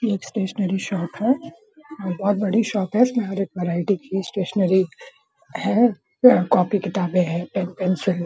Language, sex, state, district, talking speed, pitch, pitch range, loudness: Hindi, female, Bihar, Purnia, 180 wpm, 195 Hz, 185-225 Hz, -21 LUFS